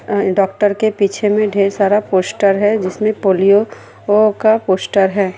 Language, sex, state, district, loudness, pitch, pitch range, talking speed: Hindi, female, Bihar, Kishanganj, -14 LUFS, 200 Hz, 195-210 Hz, 155 wpm